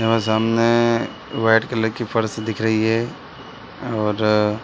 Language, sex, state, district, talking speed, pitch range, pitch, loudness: Hindi, male, Bihar, Sitamarhi, 140 wpm, 110-115 Hz, 110 Hz, -20 LUFS